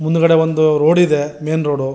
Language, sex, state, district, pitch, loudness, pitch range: Kannada, male, Karnataka, Mysore, 155 Hz, -14 LUFS, 150-160 Hz